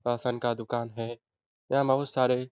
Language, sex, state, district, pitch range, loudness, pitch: Hindi, male, Bihar, Jahanabad, 120-130 Hz, -29 LUFS, 120 Hz